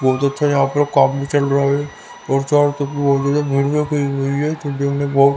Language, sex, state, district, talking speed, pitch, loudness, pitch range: Hindi, male, Haryana, Rohtak, 180 wpm, 140 Hz, -17 LUFS, 140-145 Hz